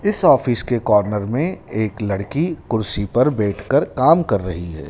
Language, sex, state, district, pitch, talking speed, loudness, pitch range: Hindi, male, Madhya Pradesh, Dhar, 110 Hz, 170 wpm, -19 LUFS, 100-125 Hz